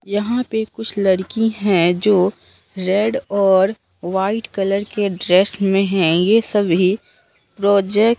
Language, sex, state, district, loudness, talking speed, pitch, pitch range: Hindi, female, Bihar, Katihar, -17 LUFS, 130 wpm, 200 Hz, 190-210 Hz